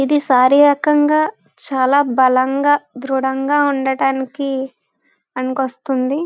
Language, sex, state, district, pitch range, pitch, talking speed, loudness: Telugu, female, Andhra Pradesh, Visakhapatnam, 265-290 Hz, 270 Hz, 85 wpm, -16 LUFS